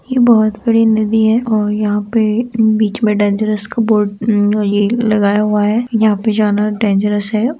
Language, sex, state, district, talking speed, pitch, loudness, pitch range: Hindi, female, Chhattisgarh, Rajnandgaon, 180 wpm, 215 Hz, -14 LUFS, 210-225 Hz